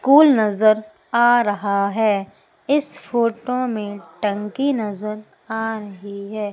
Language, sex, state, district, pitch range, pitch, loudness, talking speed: Hindi, female, Madhya Pradesh, Umaria, 205-240 Hz, 215 Hz, -20 LUFS, 120 wpm